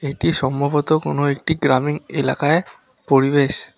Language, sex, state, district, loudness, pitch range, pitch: Bengali, male, West Bengal, Alipurduar, -19 LUFS, 135-150 Hz, 140 Hz